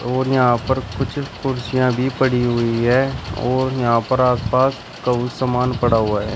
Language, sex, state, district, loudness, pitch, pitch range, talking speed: Hindi, male, Uttar Pradesh, Shamli, -19 LUFS, 125 Hz, 120-130 Hz, 180 wpm